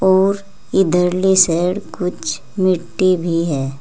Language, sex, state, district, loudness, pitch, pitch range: Hindi, female, Uttar Pradesh, Saharanpur, -17 LUFS, 180 Hz, 165-190 Hz